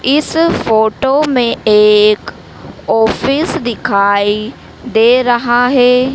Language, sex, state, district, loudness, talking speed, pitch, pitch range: Hindi, female, Madhya Pradesh, Dhar, -11 LUFS, 90 wpm, 240 Hz, 215-260 Hz